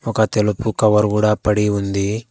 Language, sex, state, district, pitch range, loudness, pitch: Telugu, female, Telangana, Hyderabad, 105-110 Hz, -17 LUFS, 105 Hz